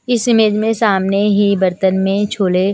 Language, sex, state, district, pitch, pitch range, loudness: Hindi, female, Punjab, Kapurthala, 200 Hz, 190-220 Hz, -14 LUFS